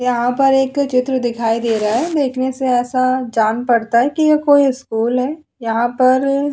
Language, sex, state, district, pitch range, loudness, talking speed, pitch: Hindi, female, Goa, North and South Goa, 235-270 Hz, -16 LUFS, 200 wpm, 255 Hz